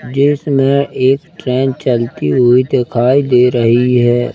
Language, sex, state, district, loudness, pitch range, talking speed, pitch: Hindi, male, Madhya Pradesh, Katni, -12 LUFS, 120-135 Hz, 140 wpm, 125 Hz